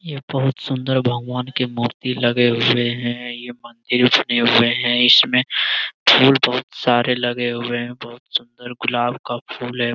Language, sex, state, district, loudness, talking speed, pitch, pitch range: Hindi, male, Bihar, Jamui, -18 LUFS, 165 wpm, 120 Hz, 120-125 Hz